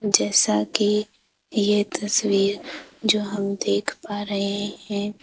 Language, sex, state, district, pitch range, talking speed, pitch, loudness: Hindi, female, Madhya Pradesh, Bhopal, 200-210 Hz, 115 wpm, 205 Hz, -22 LUFS